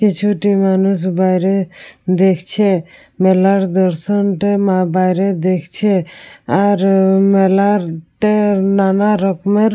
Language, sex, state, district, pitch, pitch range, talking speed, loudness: Bengali, female, West Bengal, Purulia, 195 Hz, 185-200 Hz, 80 wpm, -14 LUFS